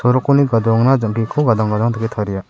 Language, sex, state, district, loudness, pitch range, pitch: Garo, male, Meghalaya, South Garo Hills, -16 LUFS, 110-130 Hz, 115 Hz